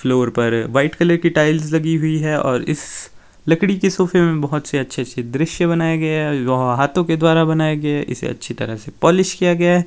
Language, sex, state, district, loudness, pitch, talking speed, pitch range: Hindi, male, Himachal Pradesh, Shimla, -17 LUFS, 155 Hz, 230 wpm, 140-170 Hz